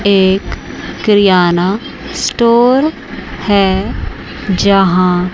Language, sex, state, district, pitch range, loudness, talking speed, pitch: Hindi, female, Chandigarh, Chandigarh, 190-220 Hz, -12 LUFS, 55 wpm, 195 Hz